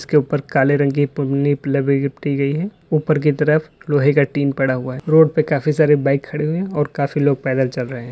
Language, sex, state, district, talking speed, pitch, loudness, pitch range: Hindi, male, Uttar Pradesh, Lalitpur, 245 wpm, 145 Hz, -18 LUFS, 140-150 Hz